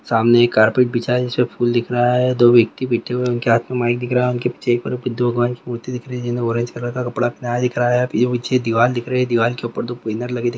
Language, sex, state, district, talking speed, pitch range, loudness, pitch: Hindi, male, Chhattisgarh, Raigarh, 220 wpm, 120-125 Hz, -18 LUFS, 120 Hz